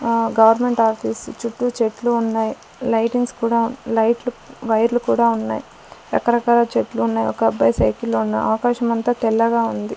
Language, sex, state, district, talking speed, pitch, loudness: Telugu, female, Andhra Pradesh, Sri Satya Sai, 140 wpm, 230 Hz, -19 LUFS